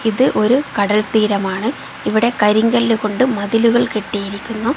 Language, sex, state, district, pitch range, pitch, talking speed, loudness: Malayalam, female, Kerala, Kozhikode, 210-235 Hz, 220 Hz, 115 wpm, -16 LUFS